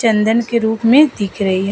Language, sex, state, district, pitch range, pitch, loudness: Hindi, female, Bihar, Vaishali, 200-235 Hz, 225 Hz, -14 LUFS